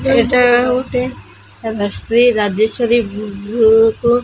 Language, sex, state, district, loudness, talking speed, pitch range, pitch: Odia, female, Odisha, Khordha, -14 LUFS, 100 wpm, 220-245 Hz, 235 Hz